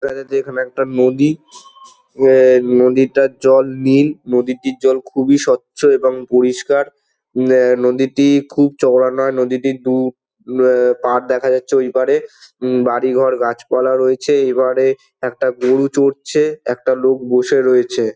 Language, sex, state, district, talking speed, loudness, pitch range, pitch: Bengali, male, West Bengal, Dakshin Dinajpur, 140 wpm, -15 LUFS, 125-140 Hz, 130 Hz